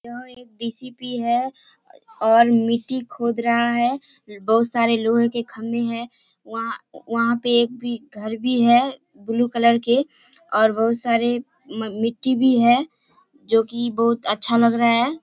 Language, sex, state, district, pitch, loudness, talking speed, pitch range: Hindi, female, Bihar, Kishanganj, 235 Hz, -20 LUFS, 155 wpm, 230-245 Hz